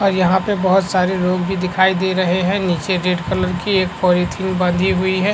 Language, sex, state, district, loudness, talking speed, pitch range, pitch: Hindi, female, Chhattisgarh, Korba, -17 LUFS, 225 wpm, 180-190 Hz, 185 Hz